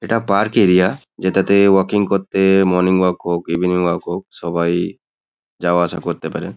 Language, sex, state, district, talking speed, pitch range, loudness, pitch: Bengali, male, West Bengal, Kolkata, 165 wpm, 85-95 Hz, -17 LUFS, 90 Hz